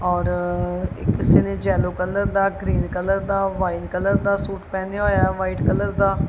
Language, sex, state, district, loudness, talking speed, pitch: Punjabi, male, Punjab, Kapurthala, -21 LUFS, 190 wpm, 180 Hz